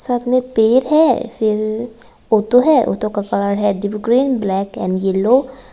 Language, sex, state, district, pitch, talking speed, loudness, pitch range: Hindi, female, Tripura, West Tripura, 225 Hz, 180 wpm, -16 LUFS, 205-250 Hz